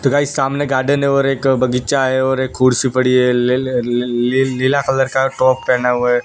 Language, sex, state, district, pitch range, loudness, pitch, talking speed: Hindi, male, Gujarat, Gandhinagar, 125-135 Hz, -15 LUFS, 130 Hz, 240 wpm